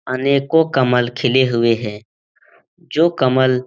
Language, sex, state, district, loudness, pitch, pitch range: Hindi, male, Bihar, Jamui, -16 LUFS, 130 Hz, 120-140 Hz